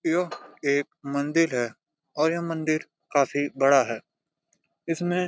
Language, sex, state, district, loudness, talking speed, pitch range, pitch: Hindi, male, Jharkhand, Jamtara, -26 LUFS, 125 wpm, 140-165 Hz, 150 Hz